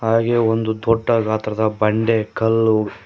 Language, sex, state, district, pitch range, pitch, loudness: Kannada, male, Karnataka, Koppal, 110-115 Hz, 110 Hz, -18 LUFS